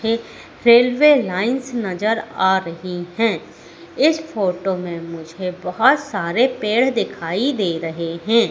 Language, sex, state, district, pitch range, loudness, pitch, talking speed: Hindi, female, Madhya Pradesh, Katni, 180-245 Hz, -19 LUFS, 215 Hz, 125 wpm